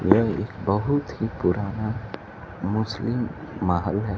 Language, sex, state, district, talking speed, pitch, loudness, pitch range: Hindi, male, Bihar, Kaimur, 115 wpm, 105 Hz, -25 LUFS, 100-110 Hz